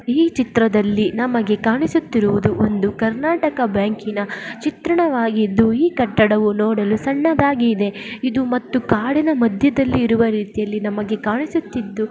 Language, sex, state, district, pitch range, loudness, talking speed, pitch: Kannada, female, Karnataka, Dakshina Kannada, 210-265 Hz, -18 LUFS, 105 wpm, 230 Hz